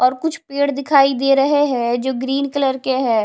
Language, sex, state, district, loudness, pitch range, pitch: Hindi, female, Himachal Pradesh, Shimla, -17 LUFS, 260-280 Hz, 275 Hz